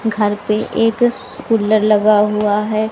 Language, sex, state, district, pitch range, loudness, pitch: Hindi, female, Haryana, Rohtak, 210-225 Hz, -15 LUFS, 215 Hz